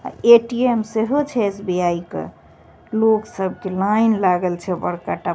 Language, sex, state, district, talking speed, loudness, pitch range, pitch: Maithili, female, Bihar, Begusarai, 155 wpm, -19 LUFS, 180-225 Hz, 210 Hz